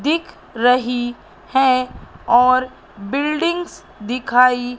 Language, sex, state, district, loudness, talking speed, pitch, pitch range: Hindi, female, Madhya Pradesh, Katni, -18 LUFS, 75 wpm, 255 Hz, 245-280 Hz